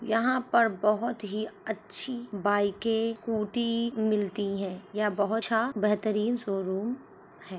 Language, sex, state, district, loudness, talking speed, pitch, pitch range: Hindi, female, Uttar Pradesh, Ghazipur, -28 LUFS, 120 wpm, 215 Hz, 205-230 Hz